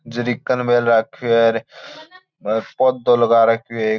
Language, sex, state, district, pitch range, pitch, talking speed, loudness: Marwari, male, Rajasthan, Churu, 115-125 Hz, 120 Hz, 165 wpm, -17 LUFS